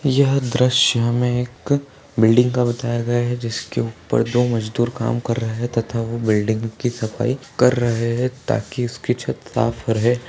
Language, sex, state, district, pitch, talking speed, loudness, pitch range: Hindi, male, Uttar Pradesh, Ghazipur, 120 Hz, 175 wpm, -20 LUFS, 115-125 Hz